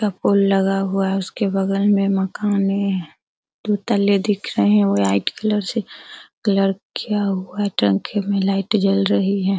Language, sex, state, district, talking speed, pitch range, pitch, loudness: Hindi, female, Bihar, Araria, 115 wpm, 195-205 Hz, 195 Hz, -19 LUFS